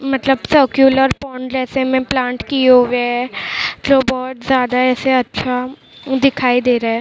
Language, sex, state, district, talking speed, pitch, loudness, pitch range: Hindi, female, Maharashtra, Mumbai Suburban, 155 wpm, 260 Hz, -15 LUFS, 250-270 Hz